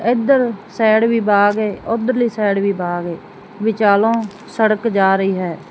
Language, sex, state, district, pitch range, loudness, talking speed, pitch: Punjabi, female, Punjab, Fazilka, 200-230 Hz, -16 LUFS, 155 wpm, 215 Hz